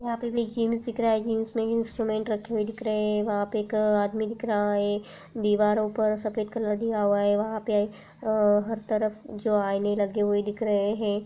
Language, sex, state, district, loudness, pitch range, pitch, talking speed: Hindi, female, Uttar Pradesh, Jalaun, -27 LUFS, 210-225 Hz, 215 Hz, 200 wpm